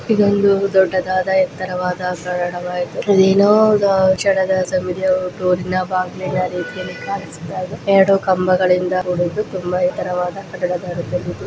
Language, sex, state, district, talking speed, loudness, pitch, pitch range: Kannada, female, Karnataka, Dharwad, 90 wpm, -17 LUFS, 185 Hz, 180-190 Hz